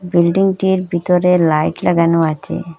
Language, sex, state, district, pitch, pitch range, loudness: Bengali, female, Assam, Hailakandi, 175 Hz, 170-180 Hz, -15 LUFS